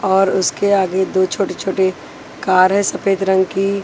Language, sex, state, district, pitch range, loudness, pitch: Hindi, female, Maharashtra, Washim, 190-195 Hz, -16 LUFS, 190 Hz